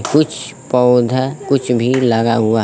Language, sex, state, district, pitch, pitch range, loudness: Hindi, male, Jharkhand, Palamu, 125 Hz, 115-135 Hz, -15 LUFS